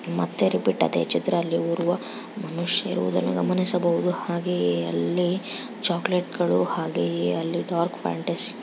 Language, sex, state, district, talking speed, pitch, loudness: Kannada, female, Karnataka, Raichur, 120 wpm, 170 Hz, -23 LUFS